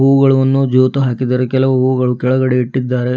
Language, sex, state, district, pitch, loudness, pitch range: Kannada, female, Karnataka, Bidar, 130 Hz, -14 LUFS, 125-130 Hz